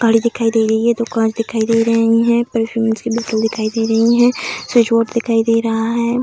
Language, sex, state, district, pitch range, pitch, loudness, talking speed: Hindi, female, Bihar, Darbhanga, 225-235 Hz, 230 Hz, -15 LUFS, 220 wpm